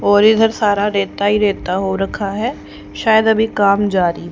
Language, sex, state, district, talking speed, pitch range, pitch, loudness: Hindi, female, Haryana, Rohtak, 195 wpm, 190-215 Hz, 205 Hz, -15 LUFS